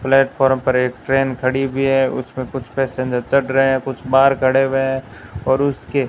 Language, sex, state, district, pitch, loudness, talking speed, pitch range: Hindi, female, Rajasthan, Bikaner, 135 Hz, -18 LUFS, 205 wpm, 130-135 Hz